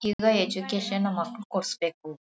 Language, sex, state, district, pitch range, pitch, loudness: Kannada, female, Karnataka, Mysore, 185-210 Hz, 200 Hz, -28 LUFS